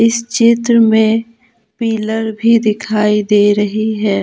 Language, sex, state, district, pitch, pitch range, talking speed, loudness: Hindi, female, Jharkhand, Deoghar, 220 Hz, 210-230 Hz, 130 wpm, -13 LUFS